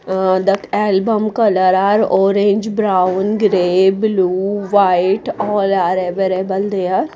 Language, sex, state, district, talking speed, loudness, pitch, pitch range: English, female, Odisha, Nuapada, 115 wpm, -15 LUFS, 195 Hz, 185-210 Hz